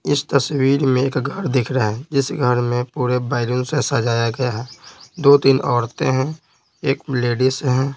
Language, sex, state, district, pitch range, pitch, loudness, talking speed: Hindi, male, Bihar, Patna, 125-140 Hz, 130 Hz, -19 LUFS, 175 wpm